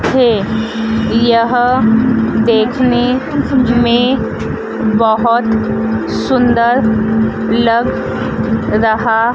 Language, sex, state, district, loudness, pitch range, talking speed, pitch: Hindi, female, Madhya Pradesh, Dhar, -13 LUFS, 225-245 Hz, 50 wpm, 230 Hz